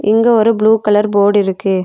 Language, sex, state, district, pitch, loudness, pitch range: Tamil, female, Tamil Nadu, Nilgiris, 210 Hz, -12 LUFS, 200-220 Hz